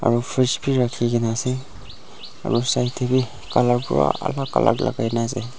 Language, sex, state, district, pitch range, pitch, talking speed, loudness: Nagamese, male, Nagaland, Dimapur, 115-130 Hz, 125 Hz, 170 wpm, -21 LUFS